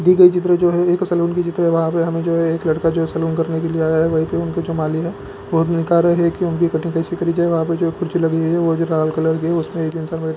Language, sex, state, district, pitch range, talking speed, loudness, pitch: Hindi, male, Bihar, Lakhisarai, 165-170 Hz, 315 wpm, -18 LUFS, 165 Hz